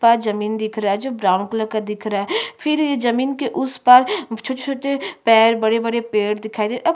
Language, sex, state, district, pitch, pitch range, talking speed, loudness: Hindi, female, Chhattisgarh, Sukma, 230 Hz, 215-265 Hz, 225 wpm, -19 LUFS